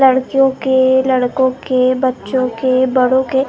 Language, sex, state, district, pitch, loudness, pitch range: Hindi, female, Maharashtra, Gondia, 260 Hz, -14 LUFS, 255-265 Hz